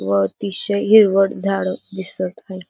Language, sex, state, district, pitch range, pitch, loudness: Marathi, female, Maharashtra, Dhule, 185-200 Hz, 195 Hz, -18 LUFS